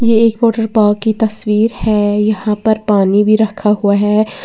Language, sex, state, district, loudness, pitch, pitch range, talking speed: Hindi, female, Uttar Pradesh, Lalitpur, -13 LUFS, 215 Hz, 210-220 Hz, 175 wpm